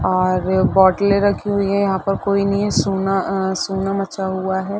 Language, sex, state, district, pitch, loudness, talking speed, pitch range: Hindi, female, Uttar Pradesh, Gorakhpur, 195 Hz, -18 LUFS, 200 wpm, 190-200 Hz